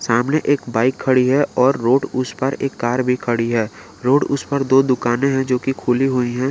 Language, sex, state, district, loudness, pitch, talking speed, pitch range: Hindi, male, Jharkhand, Garhwa, -18 LUFS, 130 Hz, 230 wpm, 120-135 Hz